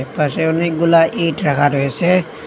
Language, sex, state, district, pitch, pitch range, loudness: Bengali, male, Assam, Hailakandi, 160 Hz, 145-170 Hz, -16 LUFS